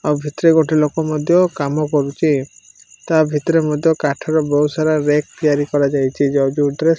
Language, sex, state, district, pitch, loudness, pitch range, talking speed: Odia, male, Odisha, Malkangiri, 150 Hz, -16 LUFS, 145-160 Hz, 180 wpm